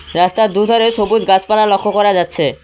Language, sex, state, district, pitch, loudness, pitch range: Bengali, male, West Bengal, Cooch Behar, 205 Hz, -13 LUFS, 190-215 Hz